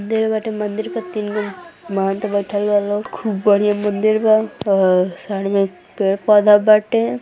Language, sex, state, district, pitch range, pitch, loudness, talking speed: Hindi, female, Uttar Pradesh, Gorakhpur, 200-215 Hz, 210 Hz, -17 LUFS, 165 wpm